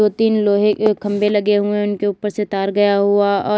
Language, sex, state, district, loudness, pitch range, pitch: Hindi, female, Uttar Pradesh, Lalitpur, -17 LUFS, 205-210 Hz, 205 Hz